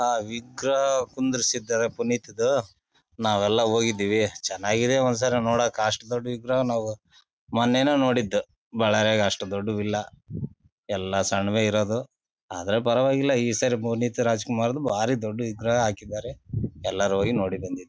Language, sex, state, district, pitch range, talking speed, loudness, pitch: Kannada, male, Karnataka, Bellary, 105-120 Hz, 120 wpm, -25 LUFS, 115 Hz